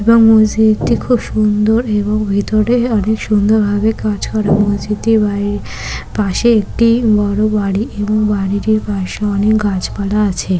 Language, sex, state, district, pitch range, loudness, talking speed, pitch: Bengali, female, West Bengal, Malda, 205-220 Hz, -14 LUFS, 130 wpm, 210 Hz